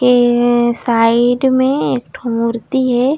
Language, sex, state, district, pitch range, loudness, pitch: Chhattisgarhi, female, Chhattisgarh, Raigarh, 235-255 Hz, -14 LUFS, 245 Hz